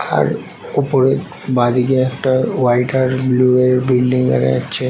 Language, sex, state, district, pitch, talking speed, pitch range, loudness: Bengali, male, West Bengal, Jhargram, 130 Hz, 135 wpm, 125-130 Hz, -15 LUFS